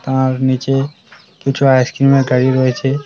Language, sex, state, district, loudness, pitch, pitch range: Bengali, male, West Bengal, Cooch Behar, -14 LUFS, 135 Hz, 130-135 Hz